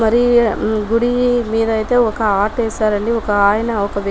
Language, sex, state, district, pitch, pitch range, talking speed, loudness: Telugu, female, Telangana, Nalgonda, 225 Hz, 210-235 Hz, 145 wpm, -16 LUFS